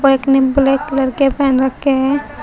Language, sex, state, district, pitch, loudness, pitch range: Hindi, female, Uttar Pradesh, Shamli, 275 Hz, -14 LUFS, 265-280 Hz